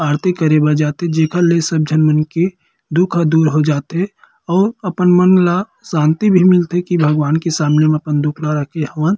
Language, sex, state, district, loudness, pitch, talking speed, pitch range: Chhattisgarhi, male, Chhattisgarh, Kabirdham, -15 LUFS, 160 Hz, 200 wpm, 155-180 Hz